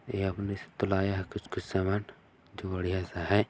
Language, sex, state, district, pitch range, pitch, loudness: Hindi, male, Chhattisgarh, Balrampur, 95-100 Hz, 95 Hz, -32 LUFS